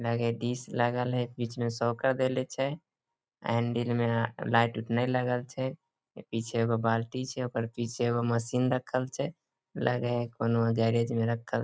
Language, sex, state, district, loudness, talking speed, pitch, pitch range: Maithili, male, Bihar, Samastipur, -30 LUFS, 165 wpm, 120 Hz, 115-125 Hz